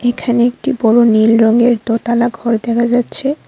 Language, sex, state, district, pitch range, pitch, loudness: Bengali, female, Tripura, Unakoti, 230-245 Hz, 235 Hz, -13 LUFS